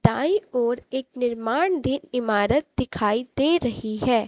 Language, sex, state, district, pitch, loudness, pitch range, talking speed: Hindi, female, Chhattisgarh, Raipur, 245 Hz, -24 LUFS, 230-275 Hz, 140 wpm